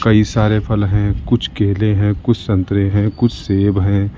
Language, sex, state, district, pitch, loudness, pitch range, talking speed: Hindi, male, Uttar Pradesh, Lalitpur, 105 Hz, -16 LUFS, 100-110 Hz, 185 wpm